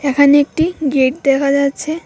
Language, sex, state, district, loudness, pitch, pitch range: Bengali, female, Tripura, West Tripura, -14 LUFS, 285 Hz, 275-305 Hz